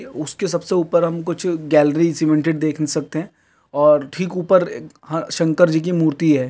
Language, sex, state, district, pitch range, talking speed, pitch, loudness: Hindi, male, Uttar Pradesh, Deoria, 155-175 Hz, 175 wpm, 165 Hz, -18 LUFS